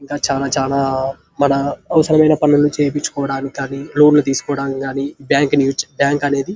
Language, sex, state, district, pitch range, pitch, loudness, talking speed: Telugu, male, Andhra Pradesh, Anantapur, 135-145 Hz, 140 Hz, -16 LUFS, 145 wpm